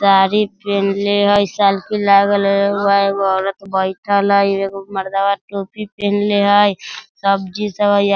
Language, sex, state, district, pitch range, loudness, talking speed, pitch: Hindi, male, Bihar, Sitamarhi, 195-205 Hz, -16 LUFS, 140 wpm, 200 Hz